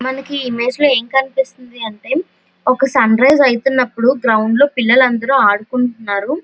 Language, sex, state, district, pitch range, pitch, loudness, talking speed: Telugu, female, Andhra Pradesh, Visakhapatnam, 235-270 Hz, 255 Hz, -14 LUFS, 120 wpm